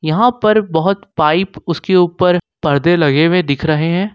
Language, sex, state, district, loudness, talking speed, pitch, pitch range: Hindi, male, Jharkhand, Ranchi, -14 LUFS, 175 wpm, 175 Hz, 155-190 Hz